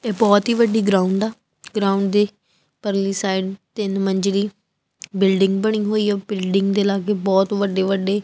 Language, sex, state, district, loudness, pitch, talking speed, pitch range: Punjabi, female, Punjab, Kapurthala, -19 LUFS, 195 Hz, 160 wpm, 195-205 Hz